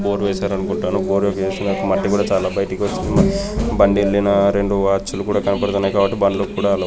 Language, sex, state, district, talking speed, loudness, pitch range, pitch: Telugu, male, Andhra Pradesh, Srikakulam, 105 wpm, -18 LUFS, 95-100 Hz, 100 Hz